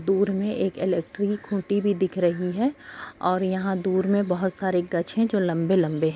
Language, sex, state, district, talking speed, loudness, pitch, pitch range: Hindi, female, Bihar, Gopalganj, 225 wpm, -25 LUFS, 190 Hz, 180-200 Hz